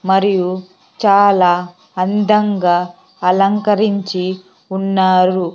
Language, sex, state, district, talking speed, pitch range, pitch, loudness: Telugu, female, Andhra Pradesh, Sri Satya Sai, 55 wpm, 185-200 Hz, 185 Hz, -15 LUFS